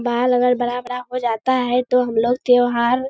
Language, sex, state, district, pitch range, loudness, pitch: Hindi, female, Bihar, Kishanganj, 245-250 Hz, -18 LUFS, 250 Hz